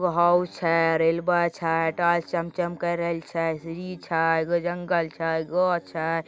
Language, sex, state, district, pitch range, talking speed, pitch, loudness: Maithili, male, Bihar, Begusarai, 165-175 Hz, 155 wpm, 170 Hz, -25 LUFS